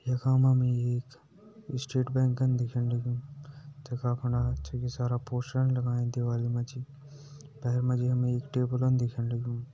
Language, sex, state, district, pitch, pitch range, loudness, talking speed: Garhwali, male, Uttarakhand, Uttarkashi, 125 Hz, 120-130 Hz, -30 LUFS, 155 wpm